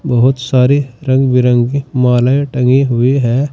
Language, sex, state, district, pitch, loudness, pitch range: Hindi, male, Uttar Pradesh, Saharanpur, 130 Hz, -12 LUFS, 125-135 Hz